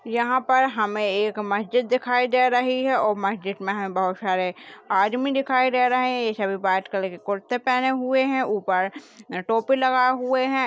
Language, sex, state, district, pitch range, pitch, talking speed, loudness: Hindi, female, Maharashtra, Nagpur, 200-255 Hz, 240 Hz, 185 wpm, -23 LUFS